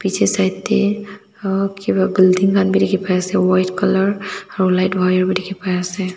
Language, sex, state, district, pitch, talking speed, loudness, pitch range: Nagamese, female, Nagaland, Dimapur, 190 Hz, 175 wpm, -17 LUFS, 185-195 Hz